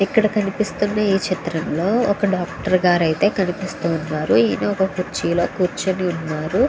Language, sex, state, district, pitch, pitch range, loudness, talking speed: Telugu, female, Andhra Pradesh, Krishna, 185 Hz, 170-200 Hz, -20 LUFS, 135 wpm